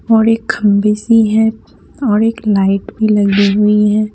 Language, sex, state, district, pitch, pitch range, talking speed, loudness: Hindi, female, Haryana, Jhajjar, 210 Hz, 205-220 Hz, 175 wpm, -12 LUFS